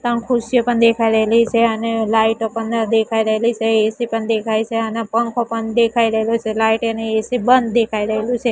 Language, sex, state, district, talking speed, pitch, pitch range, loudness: Gujarati, female, Gujarat, Gandhinagar, 205 wpm, 225 Hz, 220-235 Hz, -17 LUFS